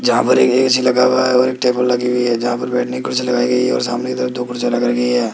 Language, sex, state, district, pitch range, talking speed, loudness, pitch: Hindi, male, Rajasthan, Jaipur, 120-125 Hz, 335 wpm, -16 LUFS, 125 Hz